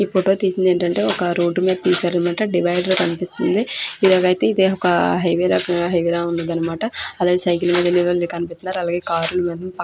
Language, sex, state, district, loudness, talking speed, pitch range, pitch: Telugu, female, Andhra Pradesh, Krishna, -18 LUFS, 175 wpm, 175-185 Hz, 175 Hz